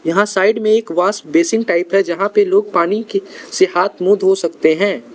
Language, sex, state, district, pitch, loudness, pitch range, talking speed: Hindi, male, Arunachal Pradesh, Lower Dibang Valley, 195 Hz, -15 LUFS, 170-210 Hz, 220 wpm